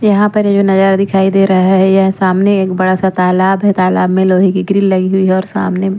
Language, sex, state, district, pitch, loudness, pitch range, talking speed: Hindi, female, Bihar, Patna, 190 Hz, -11 LUFS, 185-195 Hz, 260 wpm